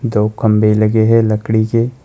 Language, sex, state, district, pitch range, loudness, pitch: Hindi, male, West Bengal, Alipurduar, 110-115 Hz, -13 LUFS, 110 Hz